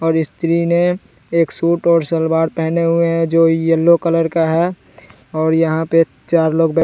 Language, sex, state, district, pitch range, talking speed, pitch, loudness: Hindi, male, Bihar, West Champaran, 160-170 Hz, 185 wpm, 165 Hz, -15 LUFS